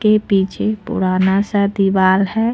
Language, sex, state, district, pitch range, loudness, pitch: Hindi, female, Jharkhand, Ranchi, 190-215 Hz, -16 LUFS, 200 Hz